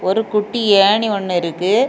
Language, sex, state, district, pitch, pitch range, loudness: Tamil, female, Tamil Nadu, Kanyakumari, 205 Hz, 190-215 Hz, -16 LUFS